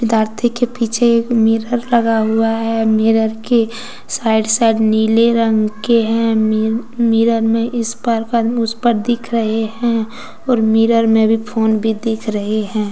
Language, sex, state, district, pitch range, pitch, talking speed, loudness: Hindi, female, Jharkhand, Deoghar, 220-235 Hz, 225 Hz, 175 wpm, -15 LUFS